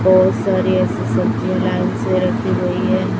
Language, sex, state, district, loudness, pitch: Hindi, female, Chhattisgarh, Raipur, -17 LUFS, 110 Hz